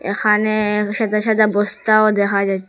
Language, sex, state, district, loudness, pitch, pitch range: Bengali, female, Assam, Hailakandi, -16 LUFS, 210 Hz, 205-215 Hz